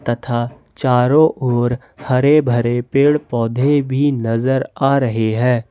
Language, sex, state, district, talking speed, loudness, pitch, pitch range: Hindi, male, Jharkhand, Ranchi, 125 wpm, -16 LUFS, 125 Hz, 120-140 Hz